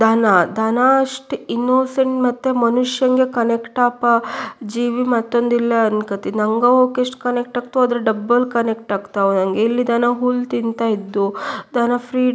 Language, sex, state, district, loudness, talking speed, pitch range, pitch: Kannada, female, Karnataka, Shimoga, -18 LUFS, 140 wpm, 225-250 Hz, 240 Hz